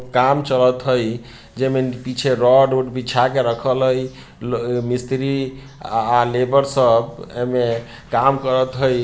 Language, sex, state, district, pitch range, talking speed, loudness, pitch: Bhojpuri, male, Bihar, Sitamarhi, 120-130 Hz, 155 wpm, -18 LUFS, 130 Hz